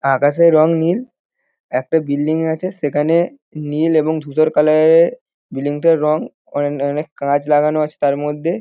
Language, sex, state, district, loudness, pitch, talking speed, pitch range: Bengali, male, West Bengal, North 24 Parganas, -16 LUFS, 155 Hz, 155 wpm, 145-165 Hz